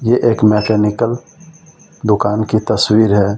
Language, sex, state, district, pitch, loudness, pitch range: Hindi, male, Delhi, New Delhi, 110 Hz, -14 LUFS, 105-125 Hz